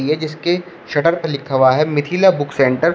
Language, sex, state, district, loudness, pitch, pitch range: Hindi, male, Uttar Pradesh, Shamli, -16 LUFS, 155 Hz, 140-170 Hz